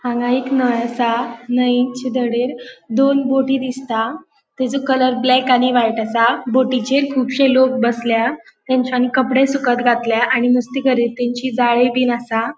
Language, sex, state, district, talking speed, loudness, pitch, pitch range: Konkani, female, Goa, North and South Goa, 145 wpm, -17 LUFS, 250 Hz, 240-260 Hz